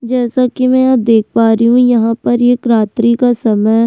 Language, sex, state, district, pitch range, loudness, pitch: Hindi, female, Uttarakhand, Tehri Garhwal, 225-250 Hz, -11 LUFS, 235 Hz